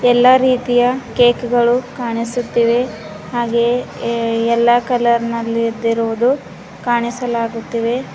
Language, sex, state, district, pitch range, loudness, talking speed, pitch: Kannada, female, Karnataka, Bidar, 230-245 Hz, -16 LUFS, 90 wpm, 235 Hz